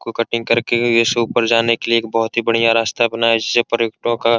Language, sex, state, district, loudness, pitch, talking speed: Hindi, male, Bihar, Araria, -16 LUFS, 115 Hz, 275 wpm